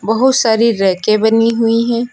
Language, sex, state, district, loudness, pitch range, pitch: Hindi, female, Uttar Pradesh, Lucknow, -13 LUFS, 220-235 Hz, 225 Hz